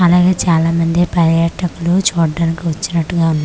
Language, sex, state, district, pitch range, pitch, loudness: Telugu, female, Andhra Pradesh, Manyam, 165-175 Hz, 170 Hz, -15 LUFS